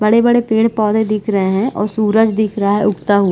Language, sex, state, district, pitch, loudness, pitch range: Hindi, female, Chhattisgarh, Balrampur, 215 Hz, -15 LUFS, 205-220 Hz